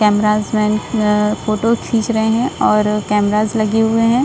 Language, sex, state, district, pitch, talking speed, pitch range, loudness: Hindi, female, Bihar, Saran, 215 Hz, 170 wpm, 210-225 Hz, -15 LUFS